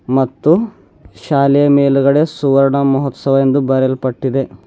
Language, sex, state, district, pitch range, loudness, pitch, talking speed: Kannada, male, Karnataka, Bidar, 135-140 Hz, -13 LUFS, 135 Hz, 90 wpm